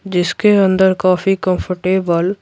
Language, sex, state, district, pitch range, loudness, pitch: Hindi, female, Bihar, Patna, 180-195 Hz, -15 LUFS, 185 Hz